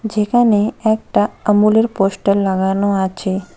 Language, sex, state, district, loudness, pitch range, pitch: Bengali, female, West Bengal, Cooch Behar, -16 LUFS, 195-220 Hz, 205 Hz